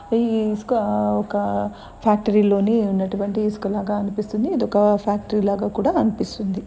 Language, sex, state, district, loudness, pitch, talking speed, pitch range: Telugu, female, Andhra Pradesh, Guntur, -21 LUFS, 210 Hz, 135 wpm, 200-215 Hz